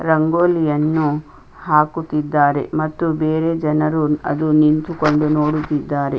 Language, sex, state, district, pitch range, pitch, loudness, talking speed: Kannada, female, Karnataka, Chamarajanagar, 150-155 Hz, 155 Hz, -17 LUFS, 85 wpm